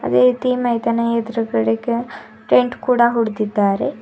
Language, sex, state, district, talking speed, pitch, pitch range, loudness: Kannada, female, Karnataka, Bidar, 90 wpm, 230 Hz, 210-240 Hz, -18 LUFS